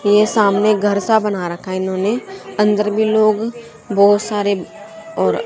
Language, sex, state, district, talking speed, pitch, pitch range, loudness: Hindi, female, Haryana, Jhajjar, 145 wpm, 210 Hz, 200-215 Hz, -16 LUFS